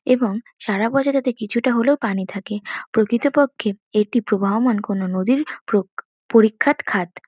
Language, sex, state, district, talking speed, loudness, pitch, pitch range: Bengali, female, West Bengal, North 24 Parganas, 130 wpm, -20 LUFS, 225 Hz, 205-255 Hz